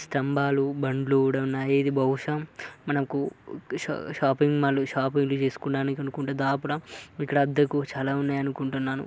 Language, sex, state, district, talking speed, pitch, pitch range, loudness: Telugu, male, Andhra Pradesh, Guntur, 120 wpm, 140 Hz, 135-140 Hz, -26 LUFS